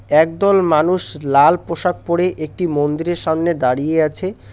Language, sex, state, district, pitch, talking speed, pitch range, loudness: Bengali, male, West Bengal, Alipurduar, 160 Hz, 130 wpm, 150-175 Hz, -16 LUFS